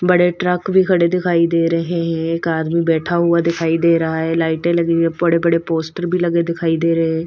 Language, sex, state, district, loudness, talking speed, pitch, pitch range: Hindi, female, Bihar, Patna, -17 LUFS, 230 wpm, 170 Hz, 165-170 Hz